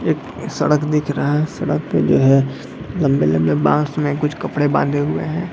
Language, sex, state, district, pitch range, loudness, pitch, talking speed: Hindi, male, Chhattisgarh, Bilaspur, 135-150 Hz, -18 LUFS, 145 Hz, 195 wpm